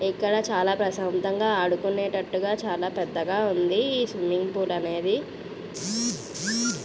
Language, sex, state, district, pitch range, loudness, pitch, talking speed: Telugu, female, Andhra Pradesh, Visakhapatnam, 180-210 Hz, -26 LUFS, 195 Hz, 95 wpm